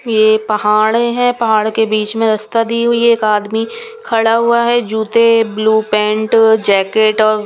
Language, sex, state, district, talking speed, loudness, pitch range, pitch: Hindi, female, Punjab, Kapurthala, 170 wpm, -13 LUFS, 215-230 Hz, 220 Hz